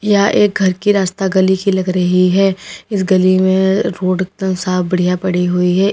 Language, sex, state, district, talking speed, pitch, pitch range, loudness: Hindi, female, Uttar Pradesh, Lalitpur, 200 wpm, 190 Hz, 185-195 Hz, -14 LUFS